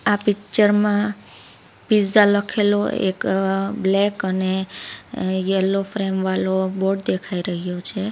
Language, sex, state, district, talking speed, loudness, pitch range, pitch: Gujarati, female, Gujarat, Valsad, 125 wpm, -20 LUFS, 190-205 Hz, 195 Hz